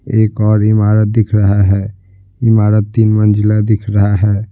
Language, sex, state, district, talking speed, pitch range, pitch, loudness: Hindi, male, Bihar, Patna, 160 wpm, 100-110 Hz, 105 Hz, -12 LUFS